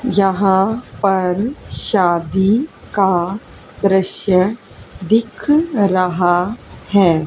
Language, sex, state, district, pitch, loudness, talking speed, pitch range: Hindi, female, Haryana, Jhajjar, 195 Hz, -16 LUFS, 65 wpm, 185-215 Hz